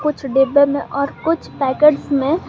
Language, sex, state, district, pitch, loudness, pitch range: Hindi, male, Jharkhand, Garhwa, 285 Hz, -16 LUFS, 275-300 Hz